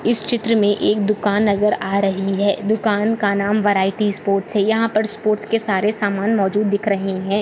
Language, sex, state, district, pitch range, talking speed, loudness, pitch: Hindi, female, Maharashtra, Nagpur, 200-215 Hz, 195 wpm, -17 LUFS, 205 Hz